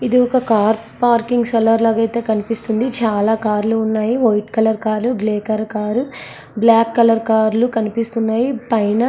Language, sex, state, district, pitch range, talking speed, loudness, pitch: Telugu, female, Andhra Pradesh, Srikakulam, 220-235 Hz, 160 wpm, -16 LUFS, 225 Hz